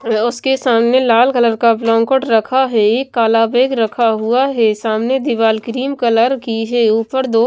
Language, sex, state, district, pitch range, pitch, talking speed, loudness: Hindi, female, Himachal Pradesh, Shimla, 225-255 Hz, 235 Hz, 185 wpm, -14 LUFS